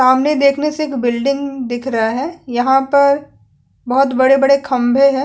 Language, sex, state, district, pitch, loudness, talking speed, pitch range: Hindi, female, Chhattisgarh, Sukma, 270 Hz, -15 LUFS, 170 wpm, 255-280 Hz